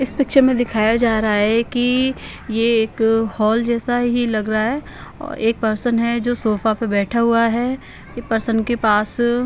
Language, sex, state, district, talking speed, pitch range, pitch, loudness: Hindi, female, Bihar, Patna, 175 wpm, 220-245 Hz, 230 Hz, -18 LUFS